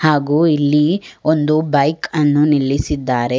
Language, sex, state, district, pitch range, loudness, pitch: Kannada, female, Karnataka, Bangalore, 140-155 Hz, -16 LUFS, 150 Hz